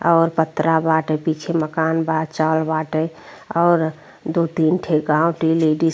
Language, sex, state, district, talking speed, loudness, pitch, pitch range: Bhojpuri, female, Uttar Pradesh, Deoria, 160 wpm, -19 LUFS, 160 Hz, 155-165 Hz